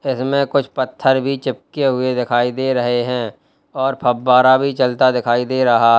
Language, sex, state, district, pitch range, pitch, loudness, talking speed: Hindi, male, Uttar Pradesh, Lalitpur, 125-135 Hz, 130 Hz, -17 LUFS, 170 wpm